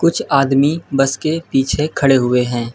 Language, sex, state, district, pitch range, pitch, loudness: Hindi, female, West Bengal, Alipurduar, 135-155 Hz, 135 Hz, -16 LUFS